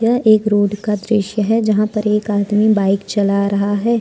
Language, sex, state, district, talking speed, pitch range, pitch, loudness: Hindi, female, Jharkhand, Deoghar, 210 wpm, 205-215 Hz, 210 Hz, -16 LUFS